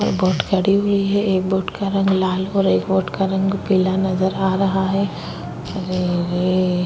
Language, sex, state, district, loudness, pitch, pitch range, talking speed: Hindi, female, Maharashtra, Chandrapur, -19 LUFS, 190 Hz, 185-195 Hz, 190 wpm